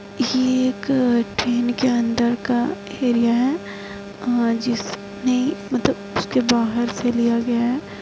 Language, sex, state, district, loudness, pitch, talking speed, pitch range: Hindi, female, Bihar, Madhepura, -21 LUFS, 240 Hz, 135 wpm, 235-250 Hz